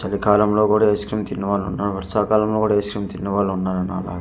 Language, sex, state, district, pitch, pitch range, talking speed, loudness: Telugu, male, Andhra Pradesh, Manyam, 100 Hz, 95-105 Hz, 215 wpm, -20 LUFS